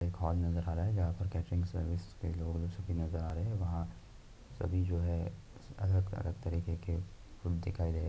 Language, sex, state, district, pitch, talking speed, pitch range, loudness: Hindi, male, Rajasthan, Nagaur, 85 Hz, 200 wpm, 85-95 Hz, -37 LUFS